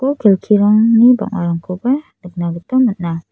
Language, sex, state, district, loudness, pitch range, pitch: Garo, female, Meghalaya, South Garo Hills, -14 LUFS, 175-240 Hz, 205 Hz